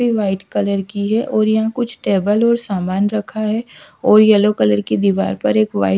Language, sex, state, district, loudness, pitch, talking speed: Hindi, female, Odisha, Sambalpur, -16 LUFS, 205 Hz, 210 wpm